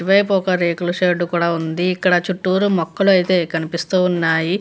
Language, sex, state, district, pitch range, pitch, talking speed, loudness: Telugu, female, Andhra Pradesh, Visakhapatnam, 170-190 Hz, 180 Hz, 115 wpm, -17 LUFS